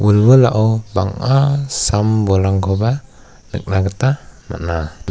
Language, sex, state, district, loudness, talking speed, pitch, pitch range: Garo, male, Meghalaya, West Garo Hills, -16 LUFS, 70 wpm, 105 Hz, 95-130 Hz